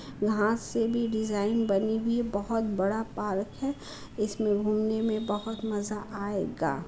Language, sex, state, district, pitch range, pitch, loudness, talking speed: Hindi, female, Bihar, Muzaffarpur, 205-225 Hz, 215 Hz, -29 LUFS, 150 wpm